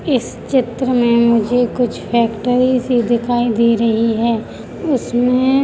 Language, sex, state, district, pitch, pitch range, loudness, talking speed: Hindi, male, Chhattisgarh, Raigarh, 240 Hz, 235-250 Hz, -16 LUFS, 125 wpm